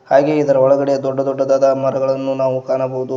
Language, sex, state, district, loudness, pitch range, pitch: Kannada, male, Karnataka, Koppal, -16 LUFS, 130-135 Hz, 135 Hz